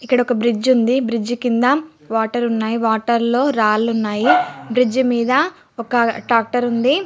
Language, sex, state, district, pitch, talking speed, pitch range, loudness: Telugu, female, Andhra Pradesh, Srikakulam, 240 Hz, 145 wpm, 230-250 Hz, -17 LUFS